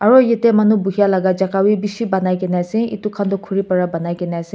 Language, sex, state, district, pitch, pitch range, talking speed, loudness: Nagamese, male, Nagaland, Kohima, 195 Hz, 185-210 Hz, 275 wpm, -17 LUFS